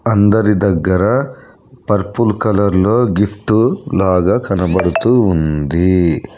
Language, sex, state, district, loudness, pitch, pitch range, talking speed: Telugu, male, Telangana, Hyderabad, -14 LUFS, 100 Hz, 95-110 Hz, 75 wpm